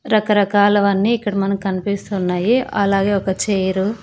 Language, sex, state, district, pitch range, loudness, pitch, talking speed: Telugu, female, Andhra Pradesh, Annamaya, 195-210 Hz, -17 LUFS, 200 Hz, 105 wpm